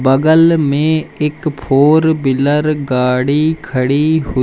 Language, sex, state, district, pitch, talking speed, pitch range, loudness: Hindi, male, Madhya Pradesh, Umaria, 145 Hz, 110 wpm, 135-155 Hz, -13 LUFS